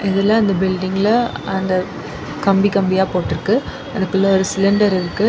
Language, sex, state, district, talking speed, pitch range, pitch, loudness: Tamil, female, Tamil Nadu, Kanyakumari, 125 wpm, 185-200 Hz, 195 Hz, -17 LUFS